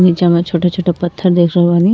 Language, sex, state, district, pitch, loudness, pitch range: Bhojpuri, female, Uttar Pradesh, Ghazipur, 175 Hz, -13 LUFS, 175-180 Hz